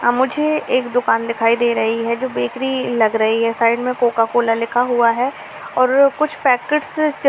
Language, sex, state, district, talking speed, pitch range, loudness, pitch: Hindi, female, Uttar Pradesh, Gorakhpur, 175 wpm, 230-265 Hz, -17 LUFS, 245 Hz